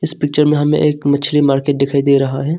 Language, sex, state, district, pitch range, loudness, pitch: Hindi, male, Arunachal Pradesh, Longding, 140-150 Hz, -14 LUFS, 145 Hz